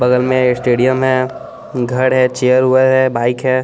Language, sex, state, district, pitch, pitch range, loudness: Hindi, male, Bihar, West Champaran, 130 Hz, 125-130 Hz, -14 LUFS